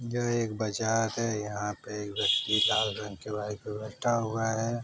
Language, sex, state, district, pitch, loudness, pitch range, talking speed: Hindi, male, Uttar Pradesh, Varanasi, 110 Hz, -30 LUFS, 105-115 Hz, 200 wpm